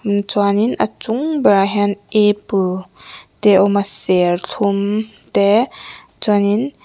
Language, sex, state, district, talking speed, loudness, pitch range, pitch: Mizo, female, Mizoram, Aizawl, 115 wpm, -16 LUFS, 200-215 Hz, 205 Hz